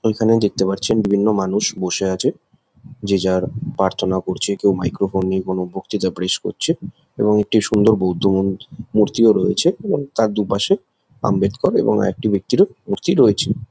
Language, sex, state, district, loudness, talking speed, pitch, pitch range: Bengali, male, West Bengal, Jalpaiguri, -18 LUFS, 160 wpm, 100 Hz, 95-110 Hz